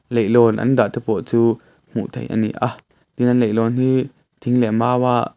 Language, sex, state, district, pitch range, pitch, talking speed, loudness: Mizo, male, Mizoram, Aizawl, 115-125 Hz, 120 Hz, 200 wpm, -18 LUFS